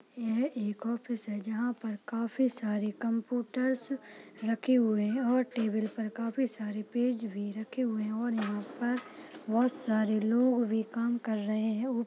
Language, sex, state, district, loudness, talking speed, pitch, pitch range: Hindi, female, Maharashtra, Solapur, -32 LUFS, 160 wpm, 230 Hz, 215-245 Hz